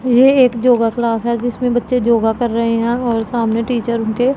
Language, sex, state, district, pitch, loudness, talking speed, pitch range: Hindi, female, Punjab, Pathankot, 235 Hz, -15 LUFS, 205 wpm, 230-245 Hz